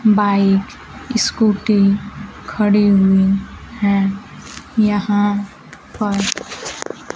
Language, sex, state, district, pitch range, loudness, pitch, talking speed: Hindi, female, Bihar, Kaimur, 200-210 Hz, -17 LUFS, 205 Hz, 60 wpm